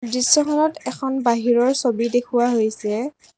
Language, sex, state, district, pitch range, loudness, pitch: Assamese, female, Assam, Kamrup Metropolitan, 235-265 Hz, -19 LUFS, 245 Hz